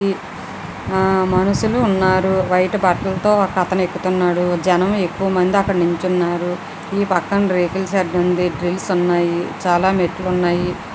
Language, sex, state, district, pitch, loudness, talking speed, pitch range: Telugu, female, Andhra Pradesh, Visakhapatnam, 185 Hz, -17 LUFS, 130 wpm, 180-190 Hz